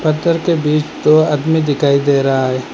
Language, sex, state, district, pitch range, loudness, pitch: Hindi, male, Assam, Hailakandi, 140-155 Hz, -14 LUFS, 150 Hz